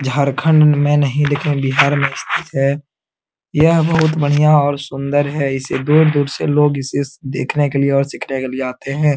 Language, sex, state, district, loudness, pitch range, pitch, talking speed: Hindi, male, Bihar, Jamui, -16 LUFS, 135-150 Hz, 145 Hz, 190 wpm